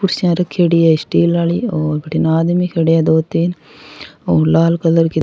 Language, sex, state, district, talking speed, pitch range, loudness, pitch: Rajasthani, female, Rajasthan, Churu, 195 wpm, 160-175 Hz, -14 LUFS, 165 Hz